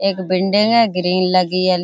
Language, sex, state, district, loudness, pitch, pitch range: Hindi, female, Uttar Pradesh, Budaun, -16 LUFS, 185 Hz, 185-195 Hz